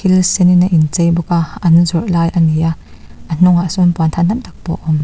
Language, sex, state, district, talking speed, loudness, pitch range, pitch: Mizo, female, Mizoram, Aizawl, 240 wpm, -13 LUFS, 165-180 Hz, 170 Hz